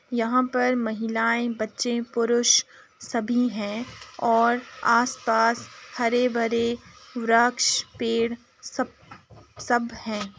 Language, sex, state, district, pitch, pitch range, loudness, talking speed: Hindi, female, Uttar Pradesh, Jalaun, 235 Hz, 230-245 Hz, -24 LUFS, 90 wpm